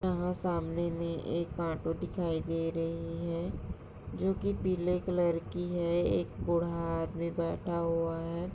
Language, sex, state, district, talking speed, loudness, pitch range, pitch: Hindi, female, Chhattisgarh, Sarguja, 150 wpm, -33 LUFS, 165-170 Hz, 170 Hz